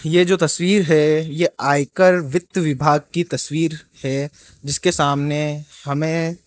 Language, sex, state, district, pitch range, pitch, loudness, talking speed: Hindi, male, Rajasthan, Jaipur, 145-175 Hz, 155 Hz, -19 LUFS, 140 wpm